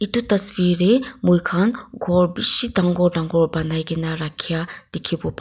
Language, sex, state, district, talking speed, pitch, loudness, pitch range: Nagamese, female, Nagaland, Kohima, 165 wpm, 180 Hz, -17 LUFS, 165-210 Hz